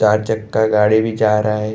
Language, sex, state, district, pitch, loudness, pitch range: Hindi, male, Chhattisgarh, Bastar, 110 Hz, -16 LUFS, 105-110 Hz